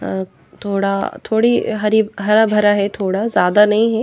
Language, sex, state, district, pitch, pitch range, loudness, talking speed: Hindi, female, Haryana, Jhajjar, 210 Hz, 195-220 Hz, -16 LUFS, 165 wpm